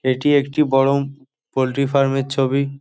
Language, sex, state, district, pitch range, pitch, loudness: Bengali, male, West Bengal, Jhargram, 135-140 Hz, 140 Hz, -18 LUFS